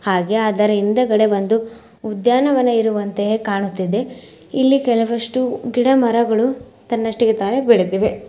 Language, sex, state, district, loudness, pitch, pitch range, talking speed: Kannada, female, Karnataka, Mysore, -17 LUFS, 225 Hz, 210-245 Hz, 95 wpm